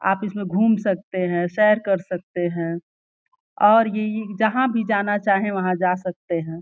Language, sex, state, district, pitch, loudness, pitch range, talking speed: Hindi, female, Uttar Pradesh, Gorakhpur, 195 Hz, -21 LUFS, 180-215 Hz, 180 wpm